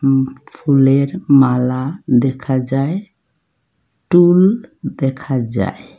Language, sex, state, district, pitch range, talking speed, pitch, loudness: Bengali, female, Assam, Hailakandi, 130-165 Hz, 70 wpm, 135 Hz, -15 LUFS